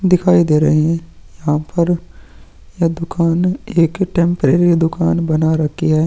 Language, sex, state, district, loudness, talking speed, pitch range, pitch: Hindi, male, Uttarakhand, Tehri Garhwal, -15 LUFS, 140 wpm, 155-175 Hz, 165 Hz